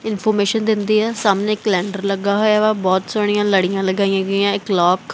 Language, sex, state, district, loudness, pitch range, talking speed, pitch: Punjabi, female, Punjab, Kapurthala, -17 LUFS, 195-215 Hz, 185 wpm, 200 Hz